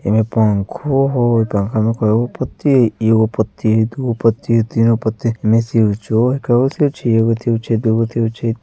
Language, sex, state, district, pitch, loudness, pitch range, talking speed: Bajjika, male, Bihar, Vaishali, 115 Hz, -16 LUFS, 110-120 Hz, 225 wpm